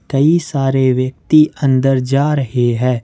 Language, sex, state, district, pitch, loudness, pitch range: Hindi, male, Jharkhand, Ranchi, 135 Hz, -14 LUFS, 130-145 Hz